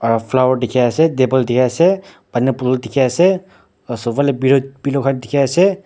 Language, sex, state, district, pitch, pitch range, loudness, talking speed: Nagamese, male, Nagaland, Dimapur, 130 Hz, 125-140 Hz, -16 LUFS, 145 wpm